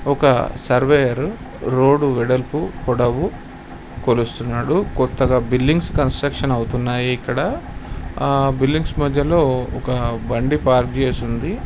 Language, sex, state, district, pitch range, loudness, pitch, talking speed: Telugu, male, Telangana, Nalgonda, 125-140 Hz, -18 LUFS, 130 Hz, 100 wpm